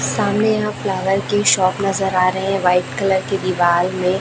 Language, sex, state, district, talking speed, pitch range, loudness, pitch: Hindi, female, Chhattisgarh, Raipur, 200 wpm, 185-195 Hz, -17 LUFS, 190 Hz